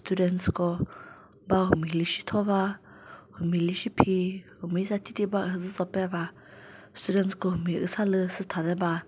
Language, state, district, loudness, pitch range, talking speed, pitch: Chakhesang, Nagaland, Dimapur, -28 LUFS, 170-195 Hz, 140 wpm, 185 Hz